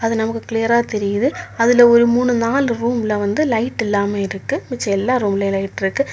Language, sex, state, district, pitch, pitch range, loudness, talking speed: Tamil, female, Tamil Nadu, Kanyakumari, 225 Hz, 205-240 Hz, -17 LUFS, 175 wpm